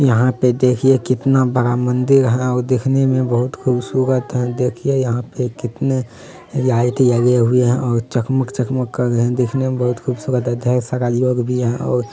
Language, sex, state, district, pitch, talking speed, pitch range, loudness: Hindi, male, Bihar, Kishanganj, 125 Hz, 185 wpm, 120-130 Hz, -17 LUFS